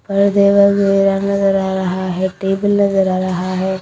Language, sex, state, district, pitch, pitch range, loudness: Hindi, female, Haryana, Rohtak, 195 Hz, 190-200 Hz, -15 LUFS